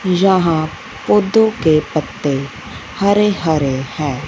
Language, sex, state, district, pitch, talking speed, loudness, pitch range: Hindi, female, Punjab, Fazilka, 160 Hz, 100 wpm, -16 LUFS, 145-195 Hz